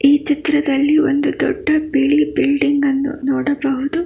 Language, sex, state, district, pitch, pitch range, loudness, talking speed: Kannada, female, Karnataka, Bangalore, 285 Hz, 280-300 Hz, -16 LUFS, 120 wpm